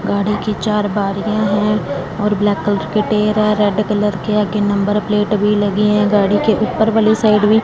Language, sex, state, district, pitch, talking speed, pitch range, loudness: Hindi, female, Punjab, Fazilka, 210 Hz, 210 wpm, 205-210 Hz, -15 LUFS